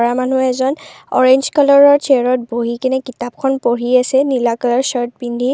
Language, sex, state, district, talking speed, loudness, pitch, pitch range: Assamese, female, Assam, Kamrup Metropolitan, 175 wpm, -14 LUFS, 255 Hz, 245-270 Hz